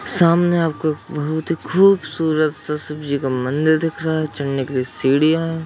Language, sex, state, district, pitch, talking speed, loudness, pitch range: Hindi, male, Jharkhand, Sahebganj, 155 Hz, 190 wpm, -19 LUFS, 145-165 Hz